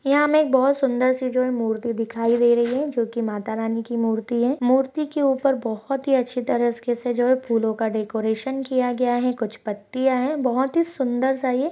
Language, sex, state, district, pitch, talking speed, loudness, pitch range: Hindi, female, Chhattisgarh, Jashpur, 250 Hz, 215 wpm, -22 LUFS, 230-265 Hz